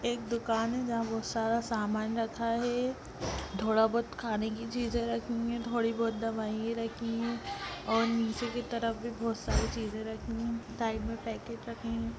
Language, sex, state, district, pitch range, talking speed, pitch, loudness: Hindi, female, Bihar, Sitamarhi, 225-235 Hz, 185 wpm, 230 Hz, -33 LUFS